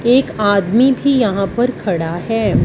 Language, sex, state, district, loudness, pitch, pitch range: Hindi, female, Punjab, Fazilka, -15 LUFS, 225 Hz, 195-250 Hz